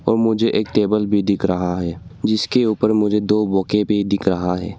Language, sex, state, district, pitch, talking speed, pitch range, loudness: Hindi, male, Arunachal Pradesh, Longding, 105 Hz, 215 wpm, 95-105 Hz, -18 LUFS